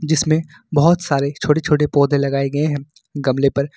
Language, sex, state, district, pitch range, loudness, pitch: Hindi, male, Jharkhand, Ranchi, 140-155 Hz, -18 LUFS, 145 Hz